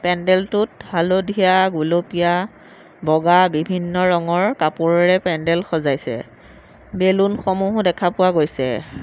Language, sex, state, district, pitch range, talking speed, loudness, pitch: Assamese, female, Assam, Sonitpur, 165-185 Hz, 85 wpm, -18 LUFS, 175 Hz